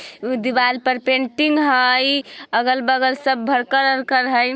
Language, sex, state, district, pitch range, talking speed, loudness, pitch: Bajjika, female, Bihar, Vaishali, 250-265 Hz, 130 wpm, -18 LUFS, 260 Hz